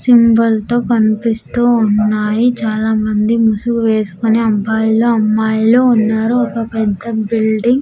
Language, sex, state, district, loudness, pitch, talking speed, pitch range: Telugu, female, Andhra Pradesh, Sri Satya Sai, -13 LUFS, 225 Hz, 105 wpm, 215-235 Hz